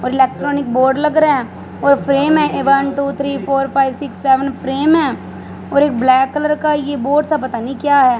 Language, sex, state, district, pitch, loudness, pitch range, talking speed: Hindi, female, Punjab, Fazilka, 275 Hz, -15 LUFS, 265-290 Hz, 220 wpm